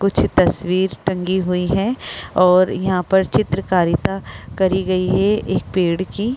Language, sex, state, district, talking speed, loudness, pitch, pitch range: Hindi, female, Chhattisgarh, Rajnandgaon, 140 wpm, -18 LUFS, 185 Hz, 180-195 Hz